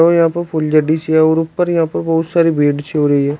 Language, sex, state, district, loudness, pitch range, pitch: Hindi, male, Uttar Pradesh, Shamli, -14 LUFS, 150-165 Hz, 160 Hz